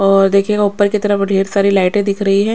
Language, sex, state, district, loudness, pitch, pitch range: Hindi, female, Odisha, Khordha, -14 LUFS, 200 Hz, 195-205 Hz